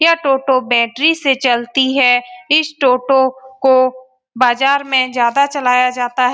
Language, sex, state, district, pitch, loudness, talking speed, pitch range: Hindi, female, Bihar, Saran, 260 Hz, -14 LUFS, 140 wpm, 250-275 Hz